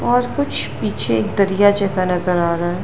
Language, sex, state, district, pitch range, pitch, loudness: Hindi, female, Gujarat, Gandhinagar, 120-185 Hz, 170 Hz, -18 LUFS